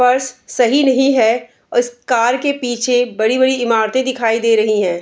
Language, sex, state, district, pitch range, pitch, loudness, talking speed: Hindi, female, Bihar, Araria, 230-260 Hz, 245 Hz, -15 LUFS, 165 wpm